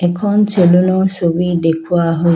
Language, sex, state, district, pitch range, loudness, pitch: Assamese, female, Assam, Kamrup Metropolitan, 170-185 Hz, -14 LUFS, 175 Hz